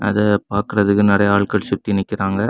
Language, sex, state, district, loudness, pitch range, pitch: Tamil, male, Tamil Nadu, Kanyakumari, -17 LUFS, 100-105 Hz, 100 Hz